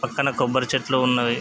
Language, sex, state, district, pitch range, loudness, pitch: Telugu, male, Andhra Pradesh, Krishna, 125-135 Hz, -22 LUFS, 130 Hz